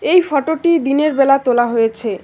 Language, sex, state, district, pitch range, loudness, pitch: Bengali, female, West Bengal, Alipurduar, 240-315 Hz, -15 LUFS, 275 Hz